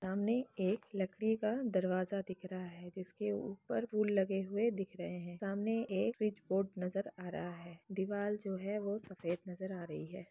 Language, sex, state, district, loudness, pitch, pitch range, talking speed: Hindi, female, Chhattisgarh, Raigarh, -39 LUFS, 195 Hz, 185-210 Hz, 190 wpm